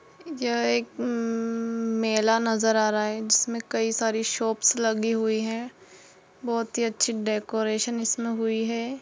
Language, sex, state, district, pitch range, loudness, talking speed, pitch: Hindi, female, Jharkhand, Jamtara, 220-230 Hz, -25 LUFS, 140 wpm, 225 Hz